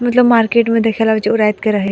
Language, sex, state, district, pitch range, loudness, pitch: Maithili, female, Bihar, Madhepura, 215-235 Hz, -13 LUFS, 225 Hz